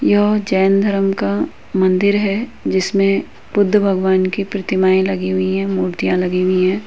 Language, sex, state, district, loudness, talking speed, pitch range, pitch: Hindi, female, Uttar Pradesh, Etah, -16 LUFS, 155 wpm, 185-200 Hz, 190 Hz